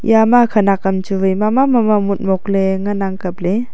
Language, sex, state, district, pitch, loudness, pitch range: Wancho, female, Arunachal Pradesh, Longding, 200 Hz, -15 LUFS, 190-220 Hz